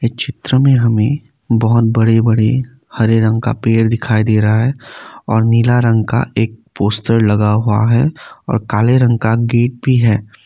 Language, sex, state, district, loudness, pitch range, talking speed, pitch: Hindi, male, Assam, Kamrup Metropolitan, -14 LUFS, 110-120 Hz, 180 wpm, 115 Hz